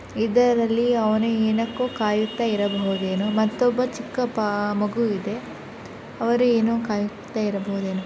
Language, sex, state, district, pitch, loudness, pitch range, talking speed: Kannada, female, Karnataka, Shimoga, 220 Hz, -23 LUFS, 205-235 Hz, 110 wpm